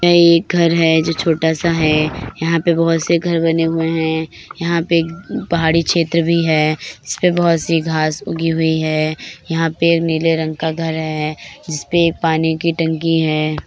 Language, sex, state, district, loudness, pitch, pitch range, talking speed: Hindi, female, Bihar, Begusarai, -16 LUFS, 165 Hz, 160-170 Hz, 180 wpm